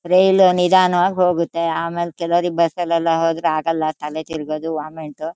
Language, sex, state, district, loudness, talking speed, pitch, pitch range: Kannada, female, Karnataka, Shimoga, -18 LUFS, 155 wpm, 170 Hz, 160-175 Hz